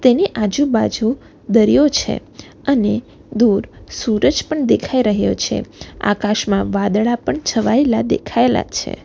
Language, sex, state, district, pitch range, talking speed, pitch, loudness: Gujarati, female, Gujarat, Valsad, 210-265 Hz, 120 wpm, 230 Hz, -17 LUFS